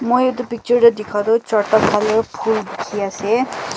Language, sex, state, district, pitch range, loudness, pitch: Nagamese, female, Nagaland, Kohima, 210-235 Hz, -17 LUFS, 225 Hz